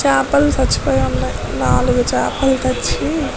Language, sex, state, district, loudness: Telugu, female, Andhra Pradesh, Guntur, -16 LUFS